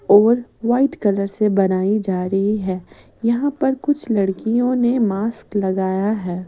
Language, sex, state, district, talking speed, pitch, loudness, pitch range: Hindi, female, Odisha, Sambalpur, 150 wpm, 210 Hz, -19 LUFS, 195-240 Hz